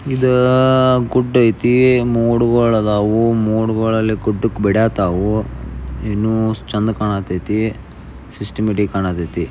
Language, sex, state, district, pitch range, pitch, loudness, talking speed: Kannada, male, Karnataka, Belgaum, 105-120 Hz, 110 Hz, -16 LUFS, 90 wpm